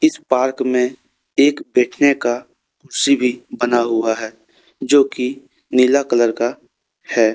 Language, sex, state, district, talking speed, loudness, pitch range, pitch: Hindi, male, Jharkhand, Deoghar, 130 wpm, -17 LUFS, 120-135 Hz, 125 Hz